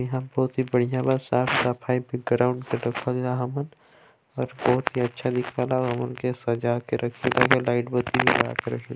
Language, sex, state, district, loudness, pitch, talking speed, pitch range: Chhattisgarhi, male, Chhattisgarh, Balrampur, -25 LUFS, 125 Hz, 125 wpm, 120-130 Hz